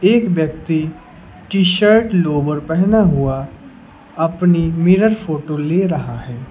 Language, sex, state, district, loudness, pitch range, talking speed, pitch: Hindi, male, Uttar Pradesh, Lucknow, -16 LUFS, 150-190 Hz, 110 wpm, 165 Hz